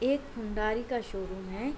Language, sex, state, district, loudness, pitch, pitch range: Hindi, female, Bihar, Gopalganj, -34 LUFS, 220 Hz, 205-250 Hz